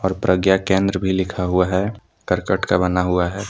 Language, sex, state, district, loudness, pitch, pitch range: Hindi, male, Jharkhand, Deoghar, -19 LUFS, 95 Hz, 90-95 Hz